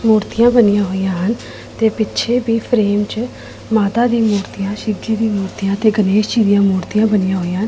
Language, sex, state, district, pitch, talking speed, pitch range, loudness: Punjabi, female, Punjab, Pathankot, 215 Hz, 170 wpm, 200-225 Hz, -16 LUFS